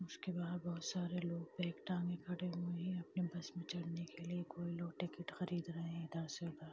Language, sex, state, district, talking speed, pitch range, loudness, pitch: Hindi, female, Bihar, Gaya, 205 wpm, 170-180 Hz, -44 LUFS, 175 Hz